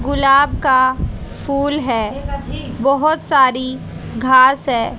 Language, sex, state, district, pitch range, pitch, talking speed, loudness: Hindi, female, Haryana, Rohtak, 255-280 Hz, 270 Hz, 95 wpm, -15 LUFS